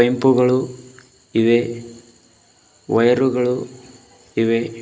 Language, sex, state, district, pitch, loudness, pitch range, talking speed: Kannada, male, Karnataka, Bidar, 125 Hz, -18 LUFS, 115-125 Hz, 60 wpm